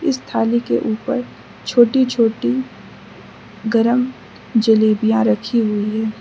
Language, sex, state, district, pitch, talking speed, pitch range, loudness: Hindi, female, Mizoram, Aizawl, 220 Hz, 105 wpm, 195-240 Hz, -17 LUFS